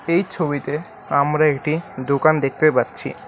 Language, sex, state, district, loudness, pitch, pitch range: Bengali, male, West Bengal, Alipurduar, -20 LUFS, 150 Hz, 140-155 Hz